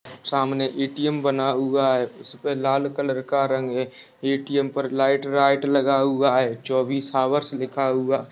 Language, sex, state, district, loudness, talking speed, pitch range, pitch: Hindi, male, Chhattisgarh, Kabirdham, -23 LUFS, 160 wpm, 130-140 Hz, 135 Hz